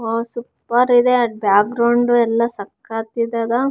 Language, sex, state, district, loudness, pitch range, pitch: Kannada, female, Karnataka, Raichur, -17 LUFS, 225-240 Hz, 235 Hz